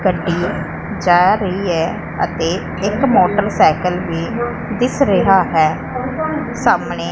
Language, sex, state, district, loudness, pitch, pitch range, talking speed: Punjabi, female, Punjab, Pathankot, -16 LUFS, 180 Hz, 165-190 Hz, 100 wpm